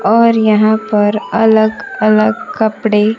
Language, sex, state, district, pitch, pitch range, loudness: Hindi, female, Bihar, Kaimur, 220 Hz, 215-225 Hz, -12 LUFS